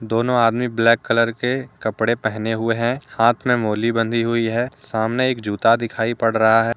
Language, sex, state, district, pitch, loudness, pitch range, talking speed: Hindi, male, Jharkhand, Deoghar, 115 Hz, -19 LUFS, 115-120 Hz, 195 wpm